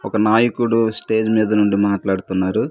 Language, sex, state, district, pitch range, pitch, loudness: Telugu, male, Andhra Pradesh, Manyam, 100-110 Hz, 105 Hz, -17 LUFS